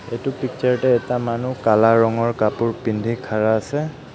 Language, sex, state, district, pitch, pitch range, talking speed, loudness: Assamese, male, Assam, Kamrup Metropolitan, 115 Hz, 115-130 Hz, 160 wpm, -20 LUFS